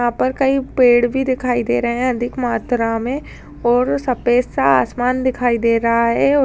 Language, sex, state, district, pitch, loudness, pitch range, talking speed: Hindi, female, Bihar, Purnia, 245 Hz, -17 LUFS, 235-260 Hz, 205 wpm